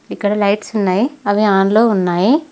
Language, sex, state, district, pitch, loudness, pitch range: Telugu, female, Telangana, Mahabubabad, 205 Hz, -15 LUFS, 200-225 Hz